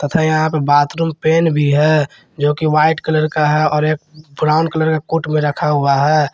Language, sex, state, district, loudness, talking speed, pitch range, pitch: Hindi, male, Jharkhand, Garhwa, -15 LUFS, 215 wpm, 150-155 Hz, 155 Hz